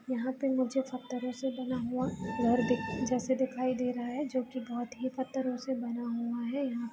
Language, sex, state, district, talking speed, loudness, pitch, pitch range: Hindi, female, Bihar, Gopalganj, 225 wpm, -33 LUFS, 250 Hz, 240-260 Hz